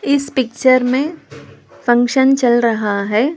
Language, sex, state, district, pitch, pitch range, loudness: Hindi, female, Telangana, Hyderabad, 255 Hz, 240-270 Hz, -15 LUFS